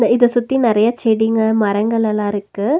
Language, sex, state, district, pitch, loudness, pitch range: Tamil, female, Tamil Nadu, Nilgiris, 220 Hz, -16 LUFS, 210-240 Hz